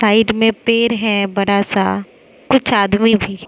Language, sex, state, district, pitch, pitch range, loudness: Hindi, female, Mizoram, Aizawl, 215 Hz, 200-225 Hz, -15 LUFS